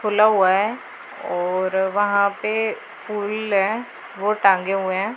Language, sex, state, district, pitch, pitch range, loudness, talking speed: Hindi, female, Punjab, Pathankot, 205 Hz, 190-215 Hz, -20 LUFS, 140 wpm